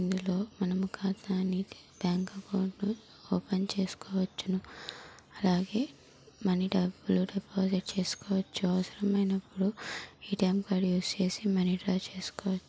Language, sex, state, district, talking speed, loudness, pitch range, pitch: Telugu, female, Andhra Pradesh, Chittoor, 95 wpm, -32 LUFS, 185-195 Hz, 190 Hz